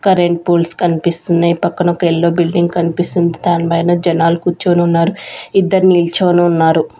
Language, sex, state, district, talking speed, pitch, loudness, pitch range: Telugu, female, Andhra Pradesh, Sri Satya Sai, 135 wpm, 175 Hz, -13 LUFS, 170-175 Hz